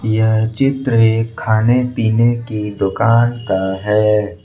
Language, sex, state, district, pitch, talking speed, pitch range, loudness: Hindi, male, Jharkhand, Ranchi, 110 Hz, 120 wpm, 105-115 Hz, -15 LUFS